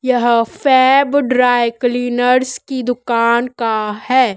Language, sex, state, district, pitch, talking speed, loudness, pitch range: Hindi, female, Madhya Pradesh, Dhar, 245 Hz, 110 wpm, -14 LUFS, 235-255 Hz